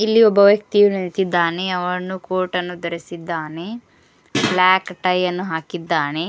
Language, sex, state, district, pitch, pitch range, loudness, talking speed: Kannada, female, Karnataka, Koppal, 180 Hz, 170-190 Hz, -19 LUFS, 105 wpm